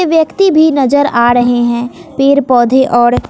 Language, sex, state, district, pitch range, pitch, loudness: Hindi, female, Bihar, West Champaran, 240-310 Hz, 265 Hz, -10 LUFS